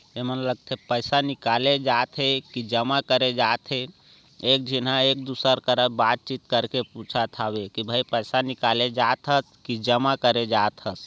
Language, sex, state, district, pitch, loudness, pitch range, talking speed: Chhattisgarhi, male, Chhattisgarh, Raigarh, 125 Hz, -23 LUFS, 115-130 Hz, 175 wpm